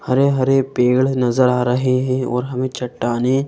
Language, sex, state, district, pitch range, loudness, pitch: Hindi, female, Madhya Pradesh, Bhopal, 125-130 Hz, -17 LUFS, 130 Hz